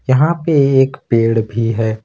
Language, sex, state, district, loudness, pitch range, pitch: Hindi, male, Jharkhand, Ranchi, -14 LUFS, 115-140 Hz, 120 Hz